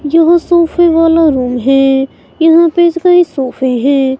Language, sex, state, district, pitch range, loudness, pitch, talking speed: Hindi, female, Himachal Pradesh, Shimla, 270-335 Hz, -10 LUFS, 320 Hz, 145 wpm